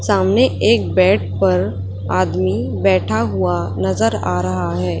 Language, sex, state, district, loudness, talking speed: Hindi, female, Chhattisgarh, Raipur, -17 LUFS, 130 wpm